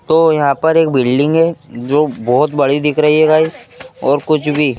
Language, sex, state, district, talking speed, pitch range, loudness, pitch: Hindi, male, Madhya Pradesh, Bhopal, 200 wpm, 140-155 Hz, -13 LUFS, 150 Hz